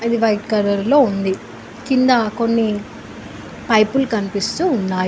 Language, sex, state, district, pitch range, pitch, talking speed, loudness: Telugu, female, Telangana, Mahabubabad, 190-235 Hz, 215 Hz, 120 wpm, -17 LUFS